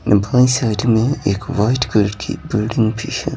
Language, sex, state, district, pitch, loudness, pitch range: Hindi, male, Bihar, Patna, 110 Hz, -17 LUFS, 105-125 Hz